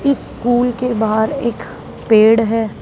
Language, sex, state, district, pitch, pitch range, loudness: Hindi, female, Haryana, Charkhi Dadri, 230 Hz, 220-245 Hz, -15 LUFS